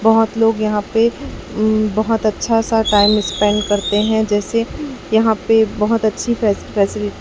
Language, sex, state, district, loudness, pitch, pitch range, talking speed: Hindi, male, Chhattisgarh, Raipur, -16 LUFS, 215 Hz, 210-225 Hz, 165 wpm